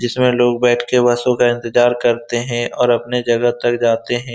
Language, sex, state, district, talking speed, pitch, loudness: Hindi, male, Bihar, Saran, 205 wpm, 120 Hz, -16 LUFS